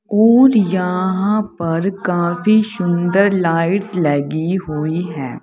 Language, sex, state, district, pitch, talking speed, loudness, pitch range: Hindi, female, Uttar Pradesh, Saharanpur, 180 Hz, 100 wpm, -16 LUFS, 165-200 Hz